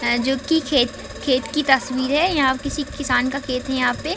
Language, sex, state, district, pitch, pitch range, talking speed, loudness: Hindi, female, Chhattisgarh, Raigarh, 270 Hz, 255-290 Hz, 245 wpm, -20 LUFS